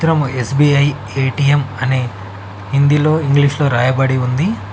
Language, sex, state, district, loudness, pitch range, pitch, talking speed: Telugu, male, Telangana, Mahabubabad, -15 LUFS, 125-145 Hz, 135 Hz, 100 wpm